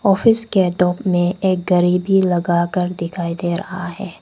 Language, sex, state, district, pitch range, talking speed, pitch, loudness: Hindi, female, Arunachal Pradesh, Papum Pare, 175-190 Hz, 185 wpm, 180 Hz, -17 LUFS